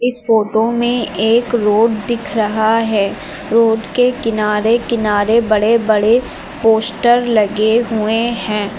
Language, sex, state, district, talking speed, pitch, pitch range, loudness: Hindi, female, Uttar Pradesh, Lucknow, 115 wpm, 225 Hz, 215-235 Hz, -14 LUFS